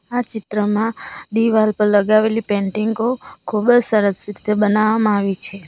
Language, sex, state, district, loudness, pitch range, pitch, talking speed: Gujarati, female, Gujarat, Valsad, -17 LUFS, 205-225 Hz, 215 Hz, 135 wpm